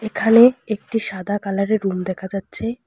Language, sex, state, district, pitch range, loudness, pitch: Bengali, female, West Bengal, Alipurduar, 195-225 Hz, -19 LUFS, 205 Hz